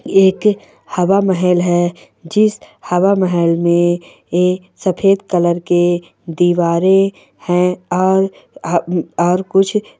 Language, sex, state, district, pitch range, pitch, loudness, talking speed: Hindi, female, Bihar, Bhagalpur, 175-190 Hz, 180 Hz, -15 LUFS, 125 wpm